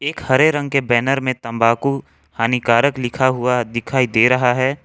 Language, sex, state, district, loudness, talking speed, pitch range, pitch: Hindi, male, Jharkhand, Ranchi, -17 LUFS, 175 wpm, 120-135 Hz, 130 Hz